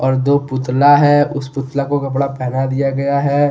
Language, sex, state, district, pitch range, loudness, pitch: Hindi, male, Jharkhand, Deoghar, 135-145 Hz, -15 LUFS, 140 Hz